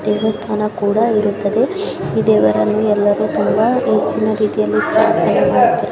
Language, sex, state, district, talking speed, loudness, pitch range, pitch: Kannada, female, Karnataka, Chamarajanagar, 110 wpm, -15 LUFS, 205-215 Hz, 210 Hz